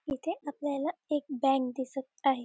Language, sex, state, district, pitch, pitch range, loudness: Marathi, female, Maharashtra, Dhule, 275 Hz, 270-295 Hz, -32 LUFS